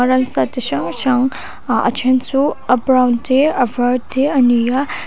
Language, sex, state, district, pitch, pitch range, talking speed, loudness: Mizo, female, Mizoram, Aizawl, 255 Hz, 250-265 Hz, 200 wpm, -15 LUFS